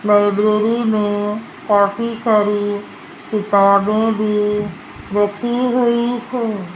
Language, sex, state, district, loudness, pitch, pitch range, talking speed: Hindi, female, Rajasthan, Jaipur, -17 LUFS, 210 Hz, 205-230 Hz, 80 wpm